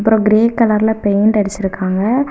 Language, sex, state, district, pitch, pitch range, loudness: Tamil, female, Tamil Nadu, Kanyakumari, 215 Hz, 200-220 Hz, -14 LUFS